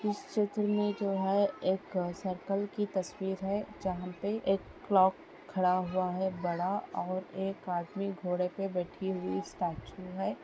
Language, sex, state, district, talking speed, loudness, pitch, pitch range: Hindi, female, Bihar, Jamui, 155 wpm, -33 LUFS, 190 Hz, 180-200 Hz